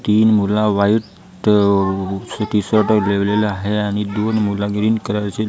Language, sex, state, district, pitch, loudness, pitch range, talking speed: Marathi, female, Maharashtra, Gondia, 105 Hz, -17 LUFS, 100-110 Hz, 130 wpm